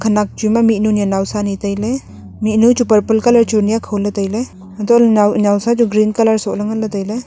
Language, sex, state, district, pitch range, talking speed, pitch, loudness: Wancho, female, Arunachal Pradesh, Longding, 205-225 Hz, 255 wpm, 215 Hz, -14 LUFS